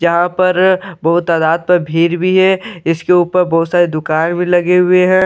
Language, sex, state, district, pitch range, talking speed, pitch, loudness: Hindi, male, Bihar, Katihar, 165-185 Hz, 195 wpm, 175 Hz, -13 LUFS